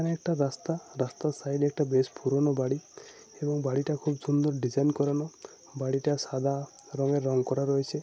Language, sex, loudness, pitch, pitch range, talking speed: Bengali, male, -29 LUFS, 145 Hz, 135-150 Hz, 195 wpm